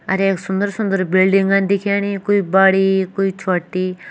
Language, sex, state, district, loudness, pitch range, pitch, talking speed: Kumaoni, female, Uttarakhand, Tehri Garhwal, -17 LUFS, 185-200 Hz, 195 Hz, 160 wpm